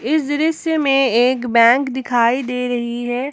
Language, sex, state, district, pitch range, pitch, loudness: Hindi, female, Jharkhand, Ranchi, 240-280 Hz, 255 Hz, -17 LUFS